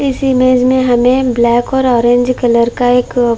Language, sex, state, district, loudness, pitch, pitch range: Hindi, female, Chhattisgarh, Bilaspur, -11 LUFS, 250 Hz, 240-255 Hz